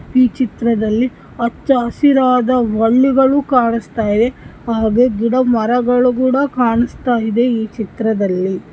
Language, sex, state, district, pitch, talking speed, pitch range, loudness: Kannada, female, Karnataka, Shimoga, 240 Hz, 105 wpm, 225-255 Hz, -15 LUFS